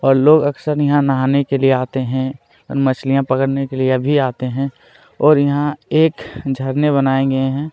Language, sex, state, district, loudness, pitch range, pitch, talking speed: Hindi, male, Chhattisgarh, Kabirdham, -16 LUFS, 130-145 Hz, 135 Hz, 195 wpm